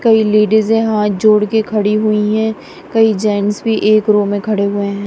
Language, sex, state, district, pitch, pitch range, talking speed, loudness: Hindi, female, Punjab, Kapurthala, 215 Hz, 210-220 Hz, 190 wpm, -13 LUFS